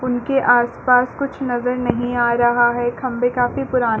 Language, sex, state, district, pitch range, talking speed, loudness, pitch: Hindi, female, Chhattisgarh, Balrampur, 240-255 Hz, 180 wpm, -18 LUFS, 245 Hz